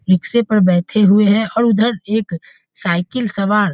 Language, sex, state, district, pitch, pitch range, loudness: Hindi, male, Bihar, Muzaffarpur, 210 Hz, 185-220 Hz, -15 LUFS